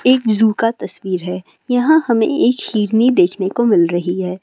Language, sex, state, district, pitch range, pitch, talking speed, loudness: Hindi, female, Andhra Pradesh, Chittoor, 185-240 Hz, 220 Hz, 190 wpm, -16 LUFS